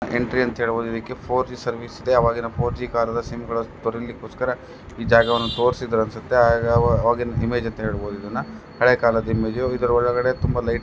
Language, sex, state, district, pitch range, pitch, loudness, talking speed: Kannada, male, Karnataka, Bellary, 115-125 Hz, 120 Hz, -22 LUFS, 185 wpm